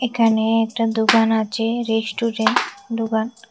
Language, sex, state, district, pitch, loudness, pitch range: Bengali, female, Tripura, West Tripura, 225 Hz, -19 LUFS, 220-230 Hz